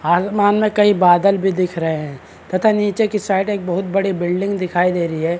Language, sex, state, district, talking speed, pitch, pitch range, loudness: Hindi, male, Maharashtra, Chandrapur, 220 wpm, 185 Hz, 175-200 Hz, -17 LUFS